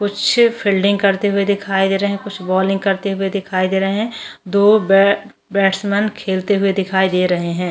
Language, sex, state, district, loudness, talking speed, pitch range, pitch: Hindi, female, Goa, North and South Goa, -16 LUFS, 185 wpm, 190-200 Hz, 195 Hz